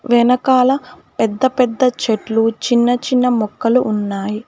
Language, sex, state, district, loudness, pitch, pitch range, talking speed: Telugu, female, Telangana, Hyderabad, -16 LUFS, 240 Hz, 220-255 Hz, 105 wpm